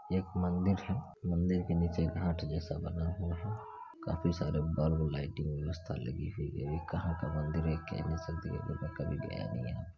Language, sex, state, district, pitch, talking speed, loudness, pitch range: Hindi, male, Bihar, Saran, 80 Hz, 205 wpm, -36 LUFS, 80-90 Hz